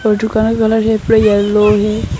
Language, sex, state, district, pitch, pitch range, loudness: Hindi, female, Arunachal Pradesh, Longding, 220 Hz, 210-220 Hz, -12 LUFS